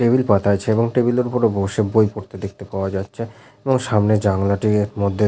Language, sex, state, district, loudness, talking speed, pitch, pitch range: Bengali, male, West Bengal, Jhargram, -19 LUFS, 205 wpm, 105 Hz, 100-115 Hz